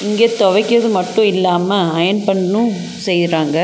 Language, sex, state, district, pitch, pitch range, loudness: Tamil, female, Tamil Nadu, Nilgiris, 195 Hz, 180-215 Hz, -15 LUFS